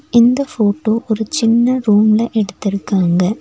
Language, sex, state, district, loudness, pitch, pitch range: Tamil, female, Tamil Nadu, Nilgiris, -15 LUFS, 220 Hz, 205-235 Hz